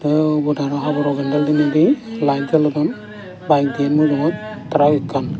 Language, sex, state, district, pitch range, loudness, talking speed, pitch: Chakma, male, Tripura, Dhalai, 145-160 Hz, -17 LUFS, 145 wpm, 150 Hz